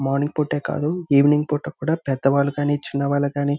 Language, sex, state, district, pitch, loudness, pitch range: Telugu, male, Andhra Pradesh, Visakhapatnam, 145 Hz, -21 LUFS, 140-150 Hz